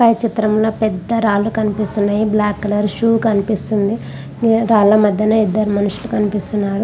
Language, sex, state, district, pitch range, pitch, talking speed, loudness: Telugu, female, Andhra Pradesh, Visakhapatnam, 205-220 Hz, 215 Hz, 140 wpm, -16 LUFS